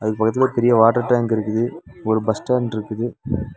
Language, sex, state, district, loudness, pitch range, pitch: Tamil, male, Tamil Nadu, Nilgiris, -19 LUFS, 110-120 Hz, 115 Hz